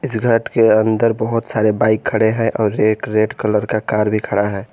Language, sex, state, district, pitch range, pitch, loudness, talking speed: Hindi, male, Jharkhand, Garhwa, 105-115 Hz, 110 Hz, -16 LUFS, 230 wpm